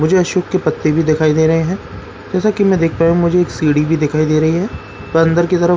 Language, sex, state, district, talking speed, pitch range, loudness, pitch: Hindi, male, Bihar, Katihar, 290 wpm, 155-180 Hz, -14 LUFS, 165 Hz